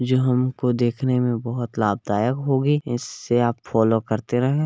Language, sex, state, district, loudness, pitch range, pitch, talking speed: Hindi, male, Chhattisgarh, Balrampur, -22 LUFS, 115-130 Hz, 120 Hz, 155 wpm